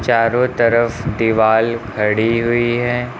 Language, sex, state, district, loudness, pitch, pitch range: Hindi, male, Uttar Pradesh, Lucknow, -16 LUFS, 115 Hz, 110-120 Hz